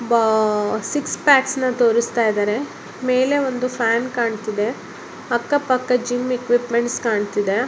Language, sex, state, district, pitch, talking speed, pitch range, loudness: Kannada, female, Karnataka, Bellary, 240 Hz, 110 wpm, 220-255 Hz, -19 LUFS